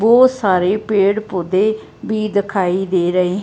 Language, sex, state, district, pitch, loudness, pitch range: Hindi, female, Punjab, Fazilka, 200 Hz, -16 LUFS, 185-215 Hz